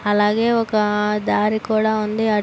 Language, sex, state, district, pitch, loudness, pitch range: Telugu, female, Andhra Pradesh, Srikakulam, 215 Hz, -19 LUFS, 210-220 Hz